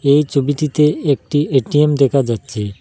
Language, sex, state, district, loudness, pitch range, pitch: Bengali, male, Assam, Hailakandi, -16 LUFS, 130-150 Hz, 140 Hz